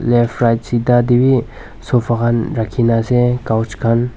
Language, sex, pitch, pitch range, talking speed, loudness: Nagamese, male, 120 Hz, 115-125 Hz, 160 wpm, -15 LUFS